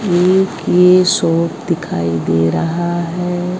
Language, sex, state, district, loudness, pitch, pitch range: Hindi, female, Bihar, Kaimur, -14 LUFS, 175 Hz, 165-180 Hz